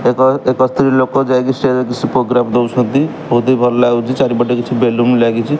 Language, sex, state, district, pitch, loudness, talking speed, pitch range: Odia, male, Odisha, Khordha, 125 Hz, -13 LUFS, 190 wpm, 120-130 Hz